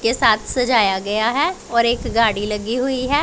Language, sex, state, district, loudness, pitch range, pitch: Hindi, female, Punjab, Pathankot, -18 LUFS, 215-255 Hz, 235 Hz